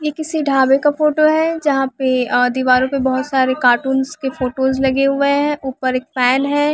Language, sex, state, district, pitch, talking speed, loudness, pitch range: Hindi, female, Bihar, West Champaran, 265 Hz, 205 wpm, -16 LUFS, 260-290 Hz